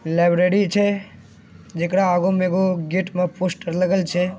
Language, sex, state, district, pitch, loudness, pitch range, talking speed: Angika, male, Bihar, Begusarai, 185 Hz, -20 LUFS, 175-190 Hz, 150 wpm